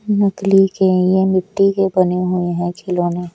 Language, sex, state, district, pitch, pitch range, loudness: Hindi, male, Odisha, Nuapada, 185 Hz, 180-195 Hz, -16 LUFS